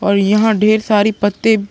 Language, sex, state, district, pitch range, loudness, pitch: Hindi, male, Chhattisgarh, Sukma, 205-220 Hz, -13 LUFS, 210 Hz